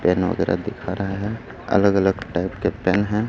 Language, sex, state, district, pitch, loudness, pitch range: Hindi, male, Chhattisgarh, Raipur, 100 Hz, -22 LUFS, 95-105 Hz